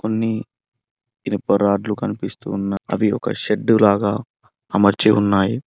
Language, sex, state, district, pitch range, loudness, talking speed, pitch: Telugu, male, Telangana, Mahabubabad, 100-110 Hz, -19 LUFS, 115 wpm, 105 Hz